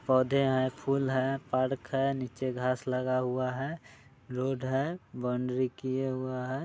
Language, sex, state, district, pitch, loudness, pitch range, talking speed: Hindi, male, Bihar, Muzaffarpur, 130 Hz, -31 LUFS, 130-135 Hz, 155 wpm